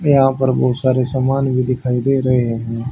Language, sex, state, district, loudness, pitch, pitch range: Hindi, male, Haryana, Jhajjar, -17 LUFS, 130 Hz, 125-135 Hz